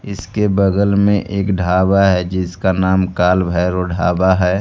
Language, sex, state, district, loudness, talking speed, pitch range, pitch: Hindi, male, Bihar, Kaimur, -15 LUFS, 155 wpm, 90-100 Hz, 95 Hz